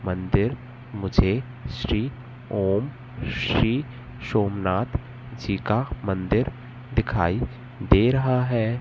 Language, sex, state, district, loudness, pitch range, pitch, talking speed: Hindi, male, Madhya Pradesh, Katni, -25 LUFS, 100-125 Hz, 120 Hz, 90 wpm